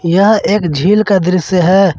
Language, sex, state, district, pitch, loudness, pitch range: Hindi, male, Jharkhand, Ranchi, 190 Hz, -11 LUFS, 180-200 Hz